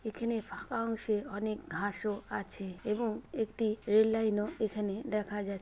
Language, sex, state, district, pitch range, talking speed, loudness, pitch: Bengali, female, West Bengal, Malda, 205-225 Hz, 150 wpm, -34 LUFS, 215 Hz